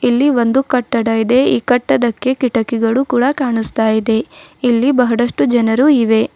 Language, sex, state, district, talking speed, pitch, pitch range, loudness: Kannada, female, Karnataka, Bidar, 125 wpm, 240 Hz, 225-255 Hz, -14 LUFS